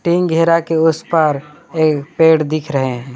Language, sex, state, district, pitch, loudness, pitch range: Hindi, male, West Bengal, Alipurduar, 160 Hz, -15 LUFS, 150-165 Hz